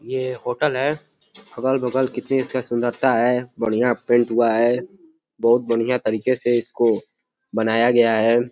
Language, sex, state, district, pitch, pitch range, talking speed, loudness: Hindi, male, Uttar Pradesh, Deoria, 125 Hz, 120-130 Hz, 150 wpm, -20 LUFS